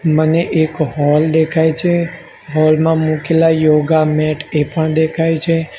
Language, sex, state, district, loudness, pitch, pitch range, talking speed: Gujarati, male, Gujarat, Gandhinagar, -14 LUFS, 160 Hz, 155-165 Hz, 145 wpm